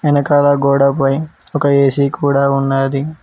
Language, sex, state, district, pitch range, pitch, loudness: Telugu, male, Telangana, Mahabubabad, 140-145 Hz, 140 Hz, -14 LUFS